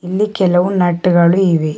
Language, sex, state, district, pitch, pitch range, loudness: Kannada, male, Karnataka, Bidar, 180 Hz, 170-190 Hz, -13 LUFS